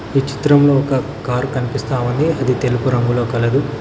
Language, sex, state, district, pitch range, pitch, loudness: Telugu, male, Telangana, Mahabubabad, 125-140 Hz, 130 Hz, -17 LUFS